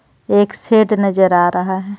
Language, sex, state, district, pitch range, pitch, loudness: Hindi, female, Jharkhand, Ranchi, 185-205 Hz, 195 Hz, -14 LUFS